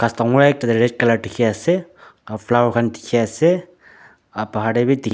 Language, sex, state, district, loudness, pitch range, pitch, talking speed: Nagamese, male, Nagaland, Dimapur, -18 LUFS, 115-140 Hz, 120 Hz, 185 wpm